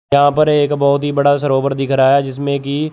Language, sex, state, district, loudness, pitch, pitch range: Hindi, male, Chandigarh, Chandigarh, -14 LUFS, 140 Hz, 140-145 Hz